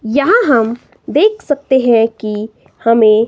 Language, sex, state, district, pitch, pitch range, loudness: Hindi, female, Himachal Pradesh, Shimla, 230 Hz, 225-285 Hz, -13 LUFS